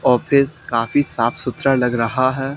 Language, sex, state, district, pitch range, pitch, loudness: Hindi, male, Haryana, Charkhi Dadri, 125-140 Hz, 130 Hz, -18 LUFS